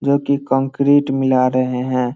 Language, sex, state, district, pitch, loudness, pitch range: Hindi, male, Bihar, Samastipur, 135 Hz, -17 LUFS, 130-140 Hz